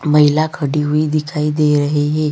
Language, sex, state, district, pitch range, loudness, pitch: Hindi, female, Chhattisgarh, Sukma, 150-155 Hz, -16 LUFS, 150 Hz